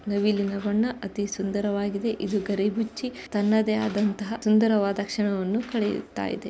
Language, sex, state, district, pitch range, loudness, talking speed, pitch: Kannada, female, Karnataka, Bijapur, 200-220 Hz, -26 LUFS, 120 wpm, 205 Hz